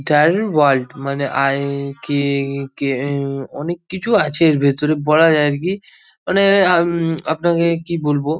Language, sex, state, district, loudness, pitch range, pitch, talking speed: Bengali, male, West Bengal, North 24 Parganas, -17 LUFS, 140-170 Hz, 150 Hz, 145 wpm